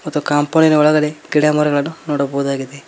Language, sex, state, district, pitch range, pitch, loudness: Kannada, male, Karnataka, Koppal, 140-155 Hz, 150 Hz, -16 LUFS